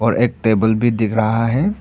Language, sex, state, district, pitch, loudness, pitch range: Hindi, male, Arunachal Pradesh, Papum Pare, 115 Hz, -17 LUFS, 110-120 Hz